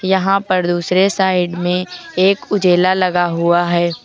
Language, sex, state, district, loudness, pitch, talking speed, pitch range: Hindi, female, Uttar Pradesh, Lucknow, -15 LUFS, 180 Hz, 150 wpm, 175-190 Hz